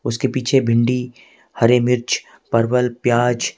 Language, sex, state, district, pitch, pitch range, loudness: Hindi, male, Jharkhand, Ranchi, 125 Hz, 120-125 Hz, -18 LUFS